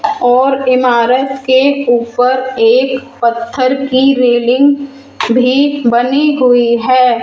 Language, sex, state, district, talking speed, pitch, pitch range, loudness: Hindi, female, Rajasthan, Jaipur, 100 wpm, 255 Hz, 245-270 Hz, -11 LUFS